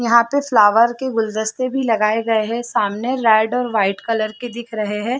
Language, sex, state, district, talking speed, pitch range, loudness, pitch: Hindi, female, Chhattisgarh, Bastar, 210 wpm, 215-245 Hz, -18 LUFS, 230 Hz